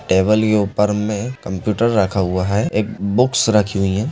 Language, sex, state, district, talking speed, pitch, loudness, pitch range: Hindi, male, Bihar, Begusarai, 190 wpm, 105 Hz, -17 LUFS, 95-110 Hz